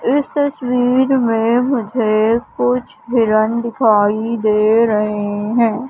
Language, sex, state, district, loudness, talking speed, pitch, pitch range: Hindi, female, Madhya Pradesh, Katni, -16 LUFS, 100 wpm, 230 Hz, 215-245 Hz